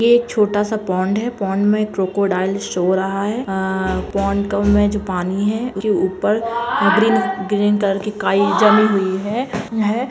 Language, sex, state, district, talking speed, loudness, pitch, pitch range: Kumaoni, female, Uttarakhand, Uttarkashi, 180 wpm, -18 LUFS, 205 Hz, 195-215 Hz